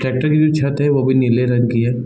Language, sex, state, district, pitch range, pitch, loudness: Hindi, male, Bihar, East Champaran, 120-145 Hz, 130 Hz, -16 LUFS